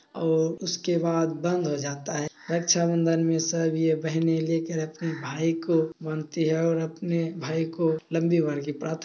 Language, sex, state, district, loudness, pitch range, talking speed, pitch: Hindi, male, Bihar, Samastipur, -26 LUFS, 160-165 Hz, 185 wpm, 165 Hz